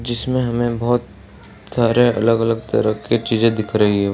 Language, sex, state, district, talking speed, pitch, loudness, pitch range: Hindi, male, Bihar, Samastipur, 160 wpm, 115 Hz, -18 LUFS, 105-120 Hz